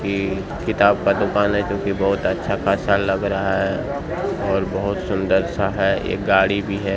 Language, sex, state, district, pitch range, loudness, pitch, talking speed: Hindi, male, Bihar, Bhagalpur, 95-100 Hz, -20 LUFS, 100 Hz, 180 wpm